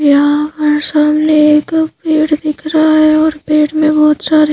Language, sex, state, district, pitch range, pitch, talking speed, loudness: Hindi, female, Madhya Pradesh, Bhopal, 300-310 Hz, 305 Hz, 170 wpm, -11 LUFS